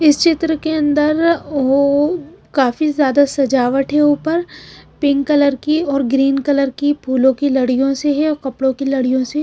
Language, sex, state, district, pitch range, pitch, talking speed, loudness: Hindi, female, Punjab, Pathankot, 270-300 Hz, 285 Hz, 170 wpm, -16 LUFS